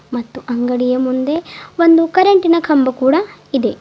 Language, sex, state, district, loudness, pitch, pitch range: Kannada, female, Karnataka, Bidar, -14 LUFS, 270 Hz, 255-335 Hz